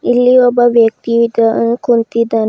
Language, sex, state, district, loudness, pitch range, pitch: Kannada, female, Karnataka, Bidar, -11 LUFS, 230-245 Hz, 235 Hz